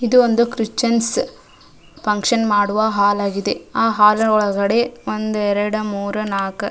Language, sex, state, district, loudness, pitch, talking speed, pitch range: Kannada, female, Karnataka, Dharwad, -18 LUFS, 215 Hz, 135 wpm, 205-230 Hz